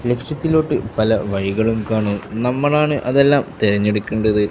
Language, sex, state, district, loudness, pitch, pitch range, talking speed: Malayalam, male, Kerala, Kasaragod, -18 LUFS, 110 Hz, 105-140 Hz, 95 wpm